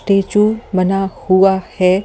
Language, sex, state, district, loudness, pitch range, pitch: Hindi, male, Delhi, New Delhi, -15 LUFS, 185-195 Hz, 195 Hz